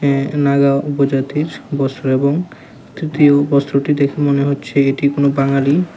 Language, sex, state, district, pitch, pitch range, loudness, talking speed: Bengali, male, Tripura, West Tripura, 140 Hz, 140-145 Hz, -15 LUFS, 130 wpm